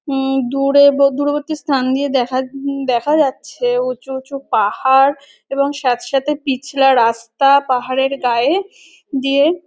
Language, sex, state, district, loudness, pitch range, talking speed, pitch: Bengali, female, West Bengal, North 24 Parganas, -16 LUFS, 260-285 Hz, 130 wpm, 275 Hz